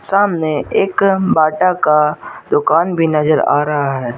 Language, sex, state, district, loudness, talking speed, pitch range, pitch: Hindi, male, Jharkhand, Garhwa, -14 LUFS, 145 wpm, 150-180 Hz, 155 Hz